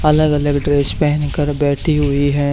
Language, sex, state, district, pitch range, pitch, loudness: Hindi, male, Haryana, Charkhi Dadri, 145-150 Hz, 145 Hz, -16 LUFS